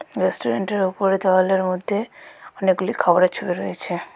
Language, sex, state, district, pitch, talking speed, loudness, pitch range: Bengali, female, West Bengal, Alipurduar, 190 Hz, 115 wpm, -21 LUFS, 185-200 Hz